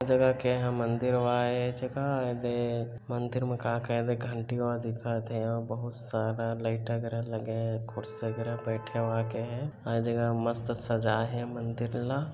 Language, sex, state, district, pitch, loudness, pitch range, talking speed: Chhattisgarhi, male, Chhattisgarh, Bilaspur, 115 Hz, -31 LUFS, 115-120 Hz, 170 wpm